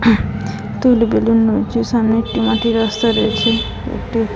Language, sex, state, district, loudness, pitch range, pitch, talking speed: Bengali, female, West Bengal, Dakshin Dinajpur, -16 LUFS, 225-230 Hz, 230 Hz, 85 wpm